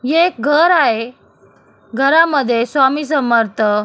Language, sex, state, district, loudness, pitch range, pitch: Marathi, female, Maharashtra, Solapur, -14 LUFS, 230-300 Hz, 270 Hz